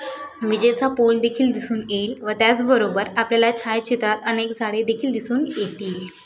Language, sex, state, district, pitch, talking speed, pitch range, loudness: Marathi, female, Maharashtra, Aurangabad, 230 Hz, 145 wpm, 215-245 Hz, -20 LUFS